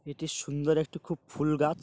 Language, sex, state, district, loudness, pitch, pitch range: Bengali, male, West Bengal, Paschim Medinipur, -31 LUFS, 155 Hz, 150-165 Hz